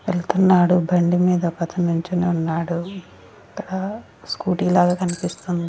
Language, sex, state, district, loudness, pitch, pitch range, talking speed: Telugu, female, Andhra Pradesh, Sri Satya Sai, -20 LUFS, 180 Hz, 170-185 Hz, 115 wpm